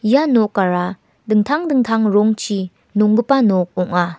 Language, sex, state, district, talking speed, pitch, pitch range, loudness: Garo, female, Meghalaya, West Garo Hills, 115 wpm, 210 Hz, 185-235 Hz, -16 LUFS